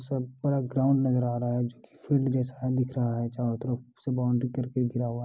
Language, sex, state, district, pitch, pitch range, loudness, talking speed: Hindi, male, Bihar, Kishanganj, 125 Hz, 120-130 Hz, -29 LUFS, 250 wpm